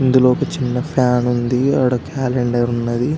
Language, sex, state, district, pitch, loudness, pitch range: Telugu, male, Telangana, Karimnagar, 125 Hz, -17 LUFS, 125-130 Hz